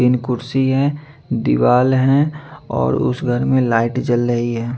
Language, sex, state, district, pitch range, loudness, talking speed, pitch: Hindi, male, Chandigarh, Chandigarh, 120-135 Hz, -17 LUFS, 165 wpm, 125 Hz